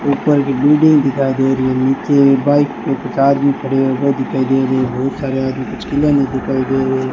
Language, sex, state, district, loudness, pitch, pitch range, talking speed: Hindi, male, Rajasthan, Bikaner, -15 LUFS, 135 Hz, 130-140 Hz, 185 wpm